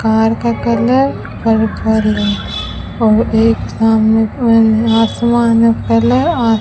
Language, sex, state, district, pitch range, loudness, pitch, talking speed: Hindi, female, Rajasthan, Bikaner, 220-230 Hz, -13 LUFS, 225 Hz, 110 wpm